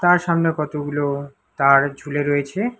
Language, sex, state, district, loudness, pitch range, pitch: Bengali, male, West Bengal, Alipurduar, -20 LUFS, 140-165 Hz, 145 Hz